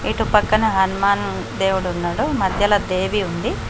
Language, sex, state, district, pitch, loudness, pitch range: Telugu, female, Telangana, Komaram Bheem, 195 Hz, -19 LUFS, 185-205 Hz